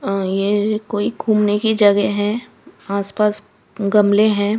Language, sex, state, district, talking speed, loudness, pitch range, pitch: Hindi, female, Himachal Pradesh, Shimla, 145 wpm, -17 LUFS, 200-210 Hz, 205 Hz